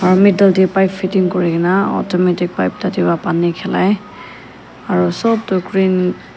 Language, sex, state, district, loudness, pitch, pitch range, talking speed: Nagamese, female, Nagaland, Kohima, -15 LUFS, 185 Hz, 180-195 Hz, 170 wpm